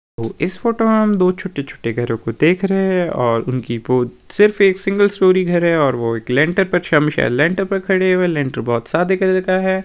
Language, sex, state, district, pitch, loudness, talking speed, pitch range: Hindi, male, Himachal Pradesh, Shimla, 175 Hz, -16 LUFS, 230 wpm, 125-190 Hz